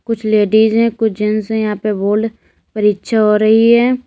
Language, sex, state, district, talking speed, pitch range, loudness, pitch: Hindi, female, Uttar Pradesh, Lalitpur, 190 wpm, 210-225 Hz, -14 LUFS, 220 Hz